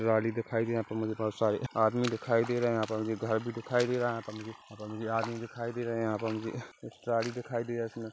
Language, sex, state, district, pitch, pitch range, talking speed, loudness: Hindi, male, Chhattisgarh, Kabirdham, 115 Hz, 110-120 Hz, 305 wpm, -32 LUFS